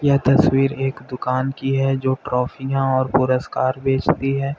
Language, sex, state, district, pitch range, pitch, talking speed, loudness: Hindi, male, Uttar Pradesh, Lalitpur, 130-135 Hz, 135 Hz, 155 wpm, -20 LUFS